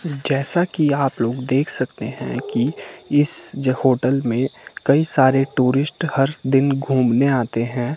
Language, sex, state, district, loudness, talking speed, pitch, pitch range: Hindi, male, Himachal Pradesh, Shimla, -19 LUFS, 145 wpm, 135 Hz, 130-145 Hz